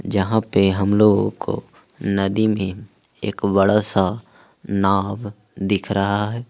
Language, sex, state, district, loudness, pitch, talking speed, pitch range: Hindi, male, Jharkhand, Ranchi, -20 LUFS, 100 Hz, 130 wpm, 100-105 Hz